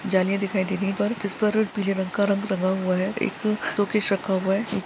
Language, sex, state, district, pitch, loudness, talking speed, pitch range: Hindi, male, Jharkhand, Jamtara, 200 Hz, -24 LUFS, 220 wpm, 190-210 Hz